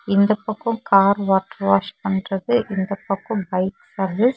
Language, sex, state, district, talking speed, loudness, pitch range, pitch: Tamil, female, Tamil Nadu, Kanyakumari, 150 wpm, -20 LUFS, 190-215 Hz, 195 Hz